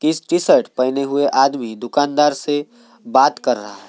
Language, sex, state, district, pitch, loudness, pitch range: Hindi, male, Maharashtra, Gondia, 145 Hz, -17 LUFS, 135-155 Hz